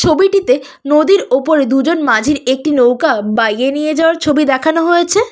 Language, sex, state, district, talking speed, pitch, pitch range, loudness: Bengali, female, West Bengal, Cooch Behar, 145 wpm, 300 Hz, 265-330 Hz, -12 LUFS